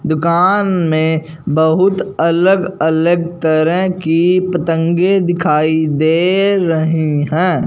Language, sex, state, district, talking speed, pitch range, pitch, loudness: Hindi, male, Punjab, Fazilka, 85 wpm, 160-180 Hz, 165 Hz, -14 LUFS